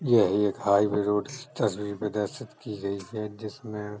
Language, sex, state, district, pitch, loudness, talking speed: Hindi, male, Uttar Pradesh, Jalaun, 105 Hz, -28 LUFS, 195 wpm